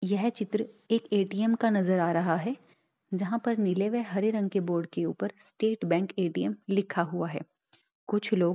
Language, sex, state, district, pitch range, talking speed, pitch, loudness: Hindi, female, Bihar, Darbhanga, 175-220 Hz, 195 wpm, 200 Hz, -29 LUFS